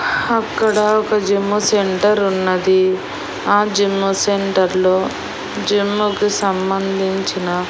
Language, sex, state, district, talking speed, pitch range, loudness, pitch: Telugu, female, Andhra Pradesh, Annamaya, 85 wpm, 190-210 Hz, -17 LUFS, 200 Hz